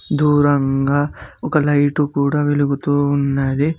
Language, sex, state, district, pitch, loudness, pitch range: Telugu, male, Telangana, Mahabubabad, 145 Hz, -17 LUFS, 140-145 Hz